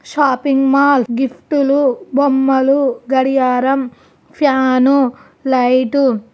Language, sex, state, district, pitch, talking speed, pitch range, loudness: Telugu, female, Andhra Pradesh, Chittoor, 270 Hz, 85 wpm, 255-280 Hz, -14 LUFS